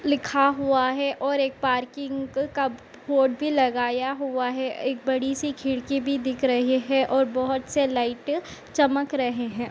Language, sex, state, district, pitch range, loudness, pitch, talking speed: Hindi, female, Uttar Pradesh, Etah, 255-275 Hz, -25 LUFS, 265 Hz, 165 wpm